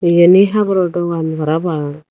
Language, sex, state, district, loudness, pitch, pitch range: Chakma, female, Tripura, Dhalai, -14 LUFS, 170 Hz, 160-180 Hz